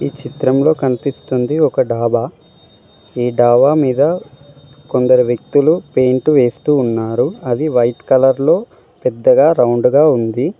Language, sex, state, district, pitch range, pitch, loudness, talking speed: Telugu, male, Telangana, Mahabubabad, 120-145 Hz, 130 Hz, -14 LUFS, 115 wpm